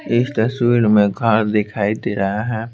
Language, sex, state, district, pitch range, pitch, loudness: Hindi, male, Bihar, Patna, 105-115 Hz, 110 Hz, -17 LUFS